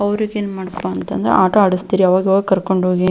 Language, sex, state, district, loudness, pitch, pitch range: Kannada, female, Karnataka, Belgaum, -16 LUFS, 190 Hz, 185-200 Hz